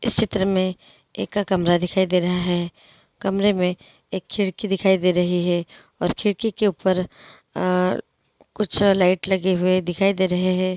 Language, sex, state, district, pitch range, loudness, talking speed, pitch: Hindi, female, Andhra Pradesh, Chittoor, 180-195 Hz, -21 LUFS, 165 wpm, 185 Hz